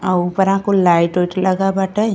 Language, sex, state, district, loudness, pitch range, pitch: Bhojpuri, female, Uttar Pradesh, Ghazipur, -16 LUFS, 180-195 Hz, 190 Hz